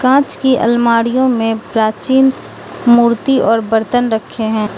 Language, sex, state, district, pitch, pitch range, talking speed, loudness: Hindi, female, Manipur, Imphal West, 235 Hz, 225-260 Hz, 125 wpm, -13 LUFS